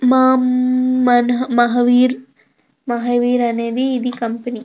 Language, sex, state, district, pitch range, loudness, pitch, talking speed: Telugu, female, Andhra Pradesh, Krishna, 240-255 Hz, -16 LUFS, 245 Hz, 105 wpm